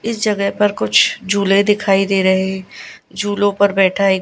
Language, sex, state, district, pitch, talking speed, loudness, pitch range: Hindi, female, Gujarat, Gandhinagar, 200 Hz, 170 wpm, -15 LUFS, 190-205 Hz